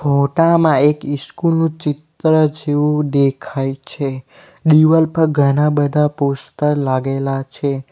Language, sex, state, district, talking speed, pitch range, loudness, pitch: Gujarati, male, Gujarat, Valsad, 115 wpm, 140-155 Hz, -16 LUFS, 145 Hz